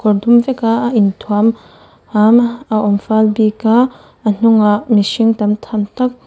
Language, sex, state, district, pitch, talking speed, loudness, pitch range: Mizo, female, Mizoram, Aizawl, 220 Hz, 160 wpm, -13 LUFS, 210-235 Hz